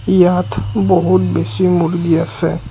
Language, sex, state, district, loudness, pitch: Assamese, male, Assam, Kamrup Metropolitan, -15 LUFS, 165 Hz